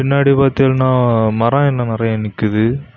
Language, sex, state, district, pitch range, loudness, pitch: Tamil, male, Tamil Nadu, Kanyakumari, 115-135 Hz, -14 LUFS, 125 Hz